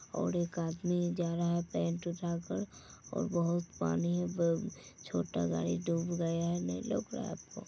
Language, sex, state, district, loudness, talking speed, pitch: Hindi, female, Bihar, Vaishali, -35 LUFS, 155 wpm, 170 Hz